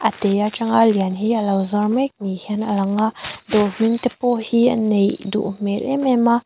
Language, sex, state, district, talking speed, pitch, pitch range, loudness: Mizo, female, Mizoram, Aizawl, 260 wpm, 215 Hz, 205-235 Hz, -19 LUFS